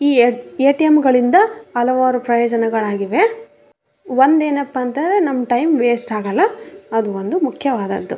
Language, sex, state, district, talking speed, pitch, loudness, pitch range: Kannada, female, Karnataka, Raichur, 105 wpm, 260 Hz, -16 LUFS, 240-315 Hz